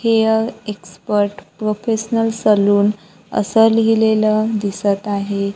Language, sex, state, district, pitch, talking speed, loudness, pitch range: Marathi, female, Maharashtra, Gondia, 210 Hz, 85 wpm, -17 LUFS, 200-220 Hz